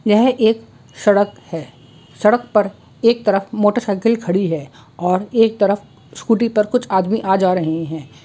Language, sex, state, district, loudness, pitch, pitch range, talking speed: Hindi, female, West Bengal, Jhargram, -17 LUFS, 200 Hz, 165-220 Hz, 160 wpm